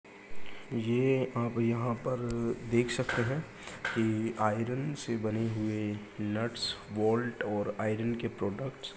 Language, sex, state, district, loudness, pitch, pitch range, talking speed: Hindi, male, Uttar Pradesh, Muzaffarnagar, -33 LUFS, 115 Hz, 105-120 Hz, 125 wpm